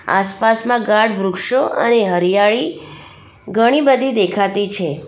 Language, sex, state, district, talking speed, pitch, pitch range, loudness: Gujarati, female, Gujarat, Valsad, 105 wpm, 210 Hz, 195-235 Hz, -15 LUFS